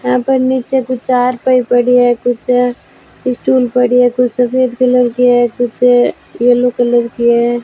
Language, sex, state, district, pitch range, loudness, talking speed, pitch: Hindi, female, Rajasthan, Bikaner, 245-250 Hz, -12 LUFS, 165 wpm, 245 Hz